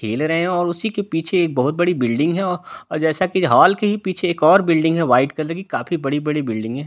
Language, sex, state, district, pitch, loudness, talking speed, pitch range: Hindi, male, Delhi, New Delhi, 165 Hz, -18 LUFS, 255 wpm, 150-180 Hz